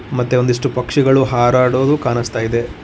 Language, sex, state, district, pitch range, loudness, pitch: Kannada, male, Karnataka, Koppal, 120-135 Hz, -15 LUFS, 125 Hz